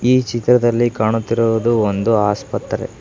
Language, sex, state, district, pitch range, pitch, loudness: Kannada, male, Karnataka, Bangalore, 110-120 Hz, 115 Hz, -17 LUFS